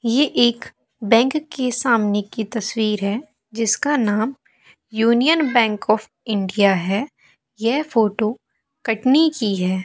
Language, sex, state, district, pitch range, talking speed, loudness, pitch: Hindi, female, Madhya Pradesh, Katni, 210-250 Hz, 120 wpm, -19 LUFS, 225 Hz